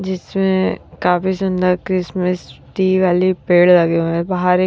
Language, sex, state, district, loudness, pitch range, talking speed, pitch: Hindi, female, Haryana, Rohtak, -16 LUFS, 175-185 Hz, 155 wpm, 180 Hz